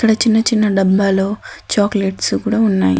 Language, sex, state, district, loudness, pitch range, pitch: Telugu, female, Telangana, Adilabad, -15 LUFS, 195-220 Hz, 205 Hz